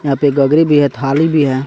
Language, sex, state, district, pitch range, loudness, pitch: Hindi, male, Jharkhand, Garhwa, 140-150 Hz, -13 LUFS, 145 Hz